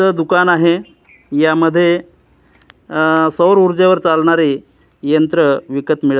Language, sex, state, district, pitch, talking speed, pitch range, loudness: Marathi, male, Maharashtra, Gondia, 160 Hz, 105 wpm, 145-175 Hz, -13 LUFS